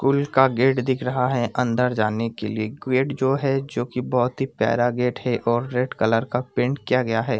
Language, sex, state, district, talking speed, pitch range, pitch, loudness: Hindi, male, Jharkhand, Sahebganj, 225 wpm, 115-130 Hz, 125 Hz, -22 LUFS